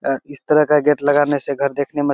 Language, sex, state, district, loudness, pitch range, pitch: Maithili, male, Bihar, Begusarai, -17 LUFS, 140-145 Hz, 145 Hz